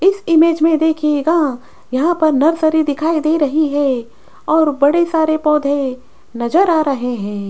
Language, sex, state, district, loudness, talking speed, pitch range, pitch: Hindi, female, Rajasthan, Jaipur, -15 LUFS, 150 wpm, 280-320 Hz, 310 Hz